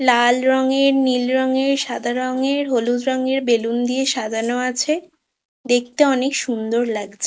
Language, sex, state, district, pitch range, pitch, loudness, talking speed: Bengali, female, West Bengal, Kolkata, 240-265 Hz, 255 Hz, -19 LUFS, 130 wpm